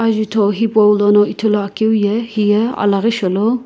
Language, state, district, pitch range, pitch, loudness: Sumi, Nagaland, Kohima, 205-225 Hz, 215 Hz, -15 LUFS